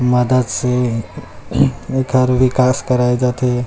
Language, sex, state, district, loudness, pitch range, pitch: Chhattisgarhi, male, Chhattisgarh, Rajnandgaon, -16 LUFS, 125-130 Hz, 125 Hz